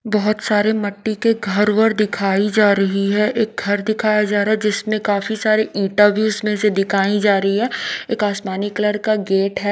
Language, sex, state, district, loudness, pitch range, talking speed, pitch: Hindi, female, Odisha, Nuapada, -18 LUFS, 200-215 Hz, 205 wpm, 210 Hz